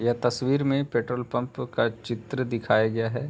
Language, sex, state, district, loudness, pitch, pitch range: Hindi, male, Uttar Pradesh, Hamirpur, -26 LUFS, 120 Hz, 115-130 Hz